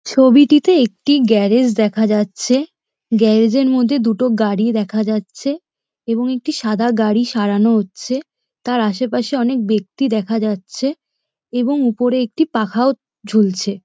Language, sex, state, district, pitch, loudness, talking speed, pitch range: Bengali, female, West Bengal, Dakshin Dinajpur, 235 Hz, -16 LUFS, 125 wpm, 215-260 Hz